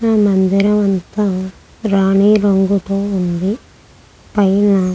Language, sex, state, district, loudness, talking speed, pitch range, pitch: Telugu, female, Andhra Pradesh, Krishna, -15 LUFS, 85 wpm, 190-205 Hz, 195 Hz